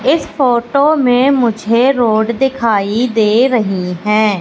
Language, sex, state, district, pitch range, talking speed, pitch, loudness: Hindi, female, Madhya Pradesh, Katni, 215-265 Hz, 120 wpm, 235 Hz, -13 LUFS